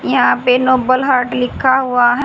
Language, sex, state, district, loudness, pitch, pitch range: Hindi, male, Haryana, Rohtak, -13 LUFS, 255 Hz, 250-260 Hz